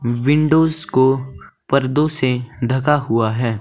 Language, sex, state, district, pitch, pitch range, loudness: Hindi, male, Himachal Pradesh, Shimla, 130 Hz, 120-150 Hz, -17 LUFS